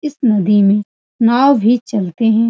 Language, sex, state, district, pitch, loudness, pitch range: Hindi, female, Bihar, Supaul, 225 Hz, -14 LUFS, 210-245 Hz